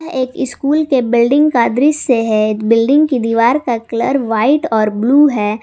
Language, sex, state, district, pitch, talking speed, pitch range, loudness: Hindi, female, Jharkhand, Garhwa, 245 Hz, 160 wpm, 230-285 Hz, -13 LUFS